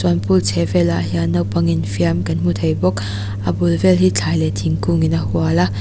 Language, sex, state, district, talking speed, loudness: Mizo, female, Mizoram, Aizawl, 225 wpm, -17 LUFS